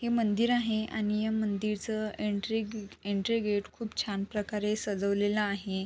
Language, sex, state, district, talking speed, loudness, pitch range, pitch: Marathi, female, Maharashtra, Sindhudurg, 155 wpm, -31 LUFS, 205-220 Hz, 210 Hz